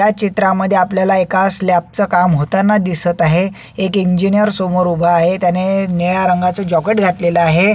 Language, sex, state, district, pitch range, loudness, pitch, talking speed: Marathi, male, Maharashtra, Solapur, 175-195 Hz, -14 LUFS, 185 Hz, 160 wpm